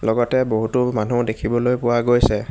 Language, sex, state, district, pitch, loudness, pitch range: Assamese, male, Assam, Hailakandi, 120 Hz, -19 LUFS, 110-125 Hz